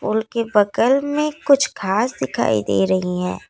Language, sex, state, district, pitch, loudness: Hindi, female, Assam, Kamrup Metropolitan, 220 Hz, -19 LUFS